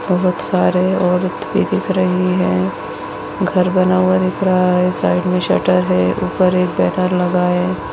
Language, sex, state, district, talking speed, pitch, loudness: Hindi, female, Chhattisgarh, Bastar, 165 wpm, 180 Hz, -16 LUFS